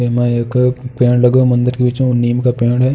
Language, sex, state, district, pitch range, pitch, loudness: Hindi, male, Uttar Pradesh, Jalaun, 120-125 Hz, 125 Hz, -14 LUFS